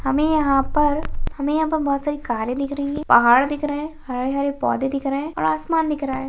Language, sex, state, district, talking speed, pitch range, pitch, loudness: Hindi, female, Bihar, Saharsa, 250 wpm, 270-300 Hz, 280 Hz, -21 LUFS